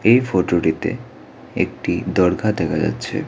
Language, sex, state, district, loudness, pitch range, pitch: Bengali, male, Tripura, West Tripura, -19 LUFS, 85-120 Hz, 95 Hz